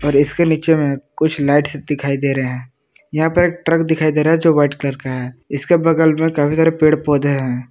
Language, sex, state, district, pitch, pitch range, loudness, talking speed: Hindi, male, Jharkhand, Palamu, 145 Hz, 140-160 Hz, -16 LUFS, 240 wpm